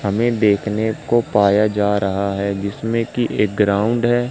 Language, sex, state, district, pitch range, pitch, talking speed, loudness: Hindi, male, Madhya Pradesh, Katni, 100-115 Hz, 105 Hz, 165 wpm, -18 LUFS